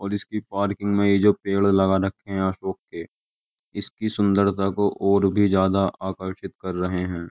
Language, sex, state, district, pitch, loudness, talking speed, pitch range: Hindi, male, Uttar Pradesh, Jyotiba Phule Nagar, 100 Hz, -23 LUFS, 180 wpm, 95-100 Hz